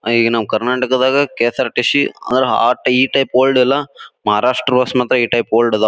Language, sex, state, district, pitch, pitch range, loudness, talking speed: Kannada, male, Karnataka, Bijapur, 125 Hz, 115-130 Hz, -15 LUFS, 165 wpm